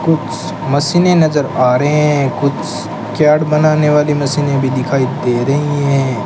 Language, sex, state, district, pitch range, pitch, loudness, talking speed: Hindi, male, Rajasthan, Bikaner, 135-150 Hz, 145 Hz, -14 LUFS, 155 wpm